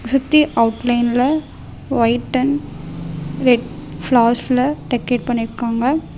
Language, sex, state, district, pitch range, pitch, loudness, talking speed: Tamil, female, Tamil Nadu, Namakkal, 235-270 Hz, 245 Hz, -17 LUFS, 80 wpm